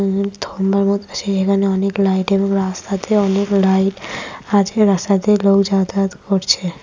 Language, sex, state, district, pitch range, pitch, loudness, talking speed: Bengali, female, West Bengal, Malda, 195-200 Hz, 195 Hz, -17 LUFS, 115 wpm